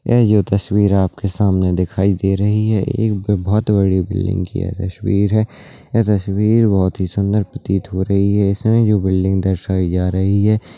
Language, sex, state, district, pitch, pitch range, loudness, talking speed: Hindi, male, Uttarakhand, Uttarkashi, 100 Hz, 95-105 Hz, -17 LUFS, 190 wpm